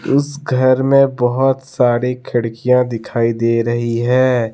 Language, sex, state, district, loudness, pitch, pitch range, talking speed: Hindi, male, Jharkhand, Deoghar, -15 LUFS, 125 Hz, 115-130 Hz, 130 wpm